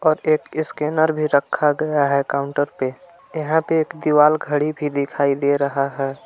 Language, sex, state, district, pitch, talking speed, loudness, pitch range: Hindi, male, Jharkhand, Palamu, 150 Hz, 180 wpm, -20 LUFS, 140-155 Hz